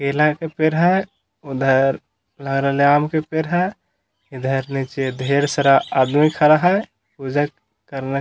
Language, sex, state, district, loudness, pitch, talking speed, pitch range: Magahi, male, Bihar, Gaya, -18 LUFS, 140 Hz, 145 wpm, 135-155 Hz